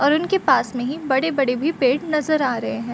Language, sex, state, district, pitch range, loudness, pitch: Hindi, female, Bihar, Gopalganj, 250-305 Hz, -20 LUFS, 270 Hz